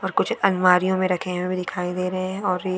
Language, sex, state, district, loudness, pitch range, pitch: Hindi, female, Maharashtra, Sindhudurg, -22 LUFS, 180-185 Hz, 185 Hz